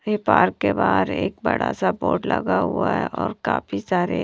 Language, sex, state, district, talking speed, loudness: Hindi, female, Punjab, Kapurthala, 200 wpm, -21 LUFS